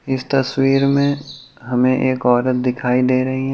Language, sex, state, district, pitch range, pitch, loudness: Hindi, male, Uttar Pradesh, Hamirpur, 125-135 Hz, 130 Hz, -17 LUFS